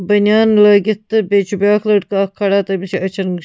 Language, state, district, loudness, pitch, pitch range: Kashmiri, Punjab, Kapurthala, -14 LUFS, 200 Hz, 195-210 Hz